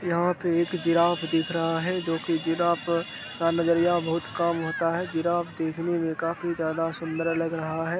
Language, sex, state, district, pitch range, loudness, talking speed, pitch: Maithili, male, Bihar, Begusarai, 165-170 Hz, -26 LUFS, 190 wpm, 170 Hz